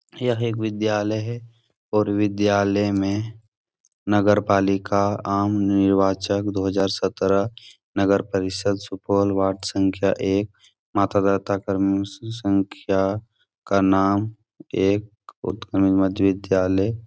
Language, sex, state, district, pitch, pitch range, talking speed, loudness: Hindi, male, Bihar, Supaul, 100 Hz, 95-105 Hz, 95 wpm, -22 LUFS